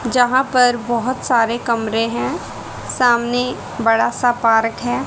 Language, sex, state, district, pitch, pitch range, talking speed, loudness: Hindi, female, Haryana, Rohtak, 240 Hz, 230-250 Hz, 130 wpm, -17 LUFS